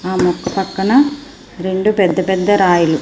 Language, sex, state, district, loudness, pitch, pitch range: Telugu, female, Andhra Pradesh, Srikakulam, -15 LUFS, 190 Hz, 180-205 Hz